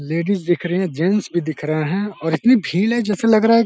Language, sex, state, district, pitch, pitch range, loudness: Hindi, male, Uttar Pradesh, Deoria, 185 Hz, 165-210 Hz, -18 LUFS